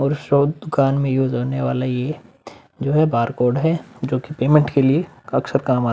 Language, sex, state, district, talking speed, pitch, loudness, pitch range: Hindi, male, Uttar Pradesh, Budaun, 200 wpm, 135 Hz, -19 LUFS, 125-150 Hz